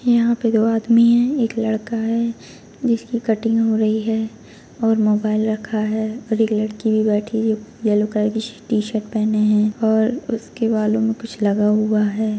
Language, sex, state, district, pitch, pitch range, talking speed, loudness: Kumaoni, female, Uttarakhand, Tehri Garhwal, 220 Hz, 215-225 Hz, 180 wpm, -19 LUFS